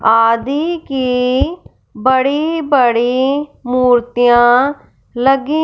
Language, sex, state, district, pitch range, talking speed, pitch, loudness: Hindi, female, Punjab, Fazilka, 245-285 Hz, 65 wpm, 260 Hz, -14 LUFS